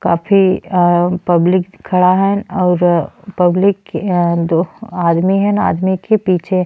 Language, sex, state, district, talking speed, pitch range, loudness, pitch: Bhojpuri, female, Uttar Pradesh, Deoria, 115 wpm, 175-195 Hz, -14 LUFS, 180 Hz